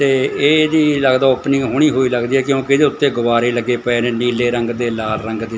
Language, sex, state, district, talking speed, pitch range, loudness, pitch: Punjabi, male, Punjab, Fazilka, 225 wpm, 120-140 Hz, -15 LUFS, 125 Hz